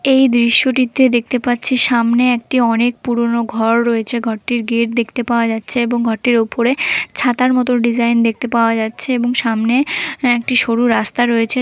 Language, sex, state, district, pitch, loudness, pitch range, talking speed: Bengali, female, West Bengal, Dakshin Dinajpur, 240 Hz, -15 LUFS, 230-250 Hz, 160 wpm